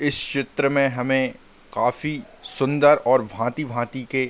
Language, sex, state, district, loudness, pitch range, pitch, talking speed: Hindi, male, Bihar, Gopalganj, -22 LUFS, 125-145 Hz, 135 Hz, 140 wpm